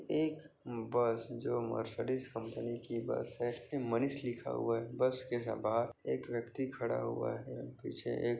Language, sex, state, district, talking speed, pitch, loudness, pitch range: Hindi, male, Chhattisgarh, Bastar, 165 wpm, 120 Hz, -38 LUFS, 115-130 Hz